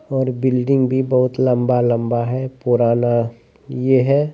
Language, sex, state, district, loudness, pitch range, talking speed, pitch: Hindi, male, Bihar, Saran, -18 LUFS, 120-130 Hz, 125 wpm, 125 Hz